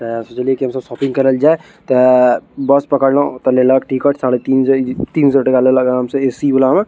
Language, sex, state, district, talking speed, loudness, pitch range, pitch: Maithili, male, Bihar, Araria, 235 wpm, -14 LUFS, 130-140 Hz, 130 Hz